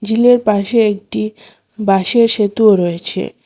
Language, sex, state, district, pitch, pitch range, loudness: Bengali, female, Assam, Hailakandi, 215 Hz, 200-225 Hz, -13 LUFS